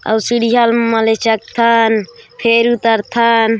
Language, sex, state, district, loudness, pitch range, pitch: Chhattisgarhi, female, Chhattisgarh, Korba, -13 LUFS, 225-235 Hz, 230 Hz